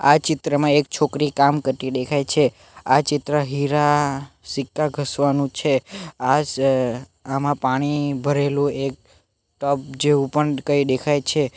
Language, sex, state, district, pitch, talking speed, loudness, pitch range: Gujarati, male, Gujarat, Navsari, 140 Hz, 130 wpm, -21 LUFS, 135-145 Hz